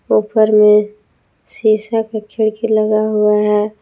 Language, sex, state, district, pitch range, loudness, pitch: Hindi, female, Jharkhand, Palamu, 210-220 Hz, -14 LUFS, 215 Hz